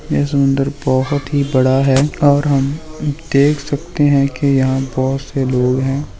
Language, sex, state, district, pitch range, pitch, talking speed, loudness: Hindi, male, Bihar, Purnia, 135-145 Hz, 140 Hz, 165 wpm, -15 LUFS